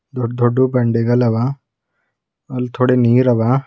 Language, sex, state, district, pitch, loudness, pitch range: Kannada, male, Karnataka, Bidar, 125 Hz, -16 LUFS, 120-130 Hz